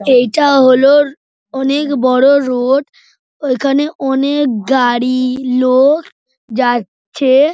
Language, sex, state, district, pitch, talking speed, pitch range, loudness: Bengali, male, West Bengal, Dakshin Dinajpur, 265 Hz, 80 wpm, 255-280 Hz, -12 LUFS